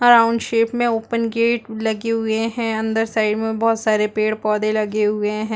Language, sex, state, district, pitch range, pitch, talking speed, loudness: Hindi, female, Chhattisgarh, Balrampur, 215-230 Hz, 220 Hz, 205 wpm, -19 LUFS